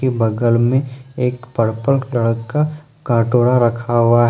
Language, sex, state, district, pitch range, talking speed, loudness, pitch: Hindi, male, Jharkhand, Ranchi, 115-130 Hz, 140 wpm, -17 LUFS, 120 Hz